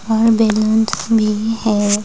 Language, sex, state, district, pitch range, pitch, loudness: Hindi, female, Uttar Pradesh, Budaun, 215-225 Hz, 220 Hz, -15 LUFS